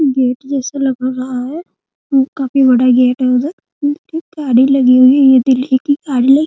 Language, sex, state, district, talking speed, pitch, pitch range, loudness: Hindi, female, Bihar, Muzaffarpur, 205 wpm, 265 Hz, 255-285 Hz, -13 LUFS